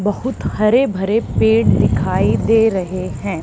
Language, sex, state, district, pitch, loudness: Hindi, female, Haryana, Charkhi Dadri, 190 Hz, -16 LUFS